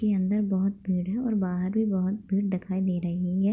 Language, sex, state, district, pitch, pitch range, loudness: Hindi, female, Bihar, Begusarai, 195 Hz, 185-205 Hz, -27 LUFS